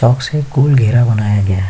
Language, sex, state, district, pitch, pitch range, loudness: Hindi, male, Chhattisgarh, Kabirdham, 120 Hz, 105-135 Hz, -13 LUFS